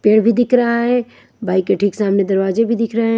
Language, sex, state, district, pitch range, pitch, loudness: Hindi, female, Punjab, Kapurthala, 200-235 Hz, 225 Hz, -16 LUFS